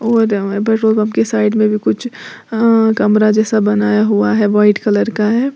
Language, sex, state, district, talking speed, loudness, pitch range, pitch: Hindi, female, Uttar Pradesh, Lalitpur, 185 wpm, -13 LUFS, 210-225 Hz, 215 Hz